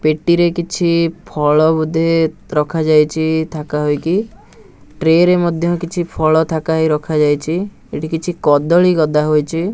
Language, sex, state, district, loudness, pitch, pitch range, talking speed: Odia, male, Odisha, Nuapada, -15 LUFS, 160 Hz, 155-170 Hz, 125 wpm